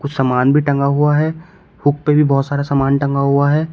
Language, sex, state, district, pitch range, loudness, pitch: Hindi, male, Uttar Pradesh, Shamli, 140-150 Hz, -15 LUFS, 140 Hz